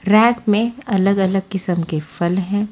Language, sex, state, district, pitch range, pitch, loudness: Hindi, female, Haryana, Charkhi Dadri, 185-210 Hz, 195 Hz, -18 LUFS